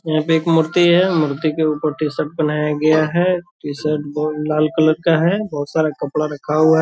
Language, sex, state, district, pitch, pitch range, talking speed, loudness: Hindi, male, Bihar, Purnia, 155 Hz, 150-160 Hz, 210 wpm, -17 LUFS